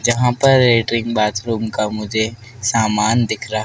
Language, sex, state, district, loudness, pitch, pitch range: Hindi, male, Madhya Pradesh, Dhar, -17 LUFS, 110 Hz, 110-120 Hz